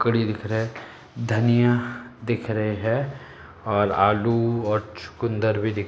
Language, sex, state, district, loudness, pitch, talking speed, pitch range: Hindi, male, Uttar Pradesh, Jalaun, -24 LUFS, 110 Hz, 145 wpm, 105-120 Hz